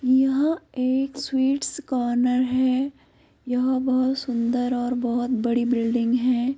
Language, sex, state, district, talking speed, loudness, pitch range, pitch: Hindi, female, Uttar Pradesh, Muzaffarnagar, 120 wpm, -23 LUFS, 245-265 Hz, 255 Hz